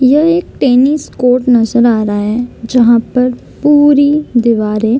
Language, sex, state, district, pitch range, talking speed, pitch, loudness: Hindi, female, Bihar, Gopalganj, 235-285 Hz, 155 wpm, 250 Hz, -11 LUFS